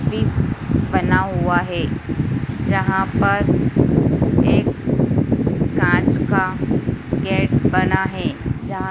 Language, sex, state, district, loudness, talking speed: Hindi, female, Madhya Pradesh, Dhar, -18 LUFS, 85 wpm